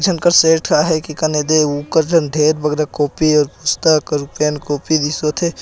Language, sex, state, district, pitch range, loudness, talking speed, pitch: Hindi, male, Chhattisgarh, Jashpur, 150-160 Hz, -15 LUFS, 215 wpm, 155 Hz